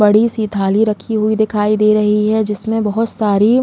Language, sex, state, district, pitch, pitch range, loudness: Hindi, female, Uttar Pradesh, Jalaun, 215 Hz, 210-220 Hz, -15 LUFS